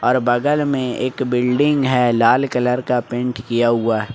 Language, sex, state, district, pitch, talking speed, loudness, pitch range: Hindi, male, Jharkhand, Ranchi, 125 Hz, 175 wpm, -18 LUFS, 120-130 Hz